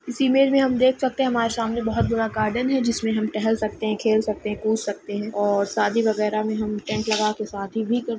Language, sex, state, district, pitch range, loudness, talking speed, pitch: Hindi, female, Jharkhand, Sahebganj, 215-235 Hz, -23 LUFS, 255 wpm, 220 Hz